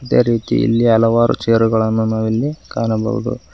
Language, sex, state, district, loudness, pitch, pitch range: Kannada, female, Karnataka, Koppal, -16 LUFS, 115 Hz, 110-120 Hz